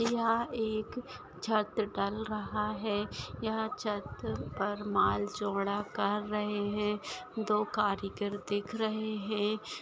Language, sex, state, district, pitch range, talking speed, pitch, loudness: Hindi, female, Maharashtra, Solapur, 205-220 Hz, 115 wpm, 210 Hz, -34 LUFS